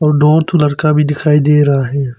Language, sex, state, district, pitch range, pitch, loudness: Hindi, male, Arunachal Pradesh, Papum Pare, 140-150 Hz, 150 Hz, -12 LUFS